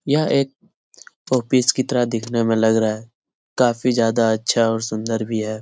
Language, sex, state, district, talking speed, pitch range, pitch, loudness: Hindi, male, Bihar, Lakhisarai, 200 wpm, 110-125 Hz, 115 Hz, -19 LUFS